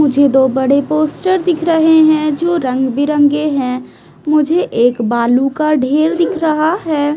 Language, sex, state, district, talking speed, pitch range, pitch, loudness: Hindi, female, Bihar, West Champaran, 160 wpm, 265-320 Hz, 300 Hz, -13 LUFS